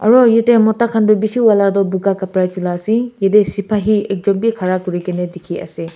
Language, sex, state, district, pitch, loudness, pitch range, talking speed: Nagamese, male, Nagaland, Kohima, 200 Hz, -15 LUFS, 185-220 Hz, 220 wpm